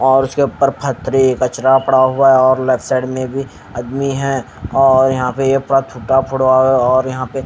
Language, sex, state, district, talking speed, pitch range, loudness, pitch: Hindi, male, Haryana, Jhajjar, 215 wpm, 130-135 Hz, -14 LUFS, 130 Hz